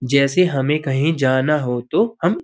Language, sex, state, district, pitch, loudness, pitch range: Hindi, female, Uttar Pradesh, Budaun, 140 Hz, -18 LUFS, 130-165 Hz